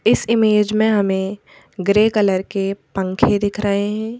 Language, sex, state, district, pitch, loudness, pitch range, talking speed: Hindi, female, Madhya Pradesh, Bhopal, 205 Hz, -18 LUFS, 195-215 Hz, 155 wpm